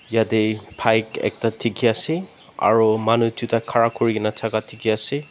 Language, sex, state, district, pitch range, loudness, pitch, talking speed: Nagamese, male, Nagaland, Dimapur, 110-115 Hz, -20 LUFS, 115 Hz, 145 wpm